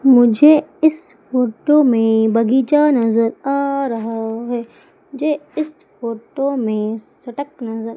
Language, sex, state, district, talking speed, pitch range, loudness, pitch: Hindi, female, Madhya Pradesh, Umaria, 115 wpm, 230-295 Hz, -17 LUFS, 255 Hz